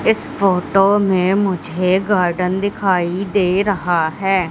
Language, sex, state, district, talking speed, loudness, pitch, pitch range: Hindi, female, Madhya Pradesh, Katni, 120 wpm, -17 LUFS, 190 Hz, 180-195 Hz